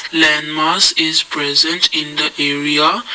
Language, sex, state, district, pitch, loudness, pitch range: English, male, Assam, Kamrup Metropolitan, 150 Hz, -13 LUFS, 150-160 Hz